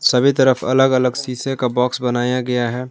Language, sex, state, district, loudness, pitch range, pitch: Hindi, male, Jharkhand, Garhwa, -17 LUFS, 125-130 Hz, 125 Hz